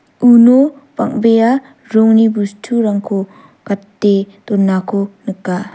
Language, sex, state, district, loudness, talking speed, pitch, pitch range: Garo, female, Meghalaya, South Garo Hills, -13 LUFS, 75 wpm, 220 Hz, 200-240 Hz